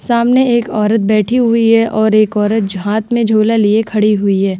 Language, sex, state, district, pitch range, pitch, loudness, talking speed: Hindi, female, Bihar, Vaishali, 210-230 Hz, 215 Hz, -12 LUFS, 220 wpm